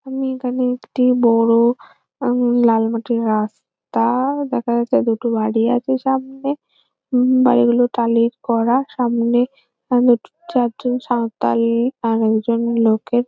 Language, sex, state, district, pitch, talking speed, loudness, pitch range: Bengali, female, West Bengal, Jhargram, 240 Hz, 130 wpm, -18 LUFS, 230-255 Hz